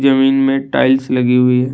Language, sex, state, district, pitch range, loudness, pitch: Hindi, male, Assam, Kamrup Metropolitan, 125-135 Hz, -13 LUFS, 130 Hz